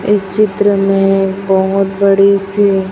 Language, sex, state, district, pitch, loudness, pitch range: Hindi, male, Chhattisgarh, Raipur, 195 Hz, -12 LUFS, 195-200 Hz